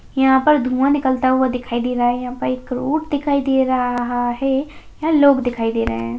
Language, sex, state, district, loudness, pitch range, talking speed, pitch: Hindi, female, Bihar, Begusarai, -18 LUFS, 245-275 Hz, 225 wpm, 260 Hz